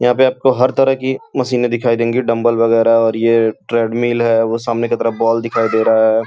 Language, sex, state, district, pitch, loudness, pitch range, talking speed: Hindi, male, Uttar Pradesh, Gorakhpur, 115 Hz, -15 LUFS, 115-125 Hz, 240 wpm